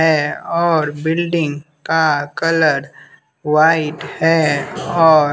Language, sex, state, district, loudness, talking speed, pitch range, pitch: Hindi, male, Bihar, West Champaran, -16 LUFS, 100 wpm, 150-165 Hz, 160 Hz